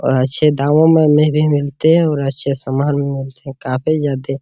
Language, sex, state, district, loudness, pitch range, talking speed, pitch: Hindi, male, Bihar, Araria, -15 LUFS, 135-150 Hz, 205 wpm, 140 Hz